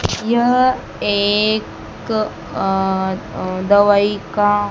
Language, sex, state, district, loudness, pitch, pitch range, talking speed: Hindi, male, Madhya Pradesh, Dhar, -17 LUFS, 205 Hz, 195-215 Hz, 65 wpm